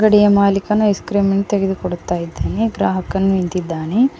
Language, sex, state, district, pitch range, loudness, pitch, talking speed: Kannada, female, Karnataka, Koppal, 185-210 Hz, -17 LUFS, 195 Hz, 100 wpm